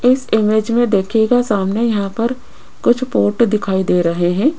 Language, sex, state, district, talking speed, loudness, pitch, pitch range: Hindi, female, Rajasthan, Jaipur, 170 wpm, -16 LUFS, 220 Hz, 195-240 Hz